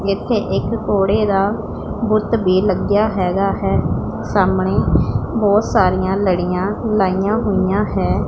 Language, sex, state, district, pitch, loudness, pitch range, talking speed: Punjabi, female, Punjab, Pathankot, 195 Hz, -17 LUFS, 185-210 Hz, 115 wpm